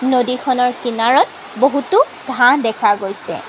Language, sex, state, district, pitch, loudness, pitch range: Assamese, female, Assam, Kamrup Metropolitan, 250 Hz, -15 LUFS, 235-265 Hz